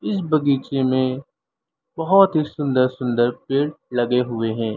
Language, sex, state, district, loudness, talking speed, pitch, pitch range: Hindi, male, Uttar Pradesh, Lalitpur, -20 LUFS, 140 wpm, 130 Hz, 125-150 Hz